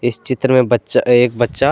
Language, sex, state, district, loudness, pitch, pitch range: Hindi, male, Jharkhand, Deoghar, -14 LUFS, 125 Hz, 120-130 Hz